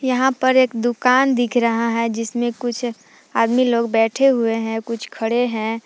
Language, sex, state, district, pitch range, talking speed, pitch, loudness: Hindi, female, Jharkhand, Palamu, 230-250 Hz, 175 wpm, 240 Hz, -19 LUFS